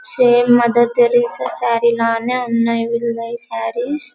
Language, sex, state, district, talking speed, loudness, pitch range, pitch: Telugu, female, Telangana, Karimnagar, 115 wpm, -16 LUFS, 230-250 Hz, 235 Hz